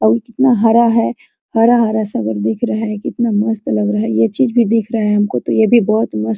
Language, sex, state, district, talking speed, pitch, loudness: Hindi, female, Jharkhand, Sahebganj, 275 wpm, 220 Hz, -15 LUFS